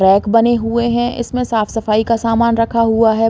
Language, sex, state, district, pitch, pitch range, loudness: Hindi, female, Uttar Pradesh, Varanasi, 230 Hz, 225-235 Hz, -15 LUFS